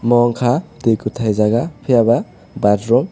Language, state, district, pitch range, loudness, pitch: Kokborok, Tripura, West Tripura, 110-120 Hz, -16 LUFS, 115 Hz